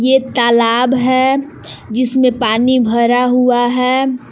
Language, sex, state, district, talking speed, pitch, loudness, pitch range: Hindi, female, Jharkhand, Palamu, 110 wpm, 250 Hz, -13 LUFS, 240-260 Hz